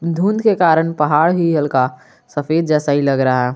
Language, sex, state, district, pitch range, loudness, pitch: Hindi, male, Jharkhand, Garhwa, 135-165 Hz, -16 LUFS, 150 Hz